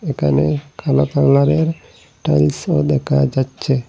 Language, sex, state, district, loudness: Bengali, male, Assam, Hailakandi, -17 LUFS